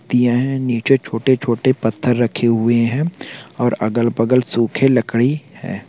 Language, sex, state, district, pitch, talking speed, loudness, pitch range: Hindi, male, Karnataka, Raichur, 120 Hz, 155 wpm, -17 LUFS, 115-130 Hz